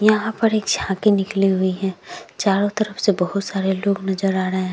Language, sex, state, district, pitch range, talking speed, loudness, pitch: Hindi, female, Uttar Pradesh, Jyotiba Phule Nagar, 190-205 Hz, 215 wpm, -20 LUFS, 195 Hz